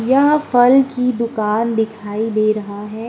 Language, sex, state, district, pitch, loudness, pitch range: Hindi, female, Uttar Pradesh, Muzaffarnagar, 225 Hz, -16 LUFS, 215-250 Hz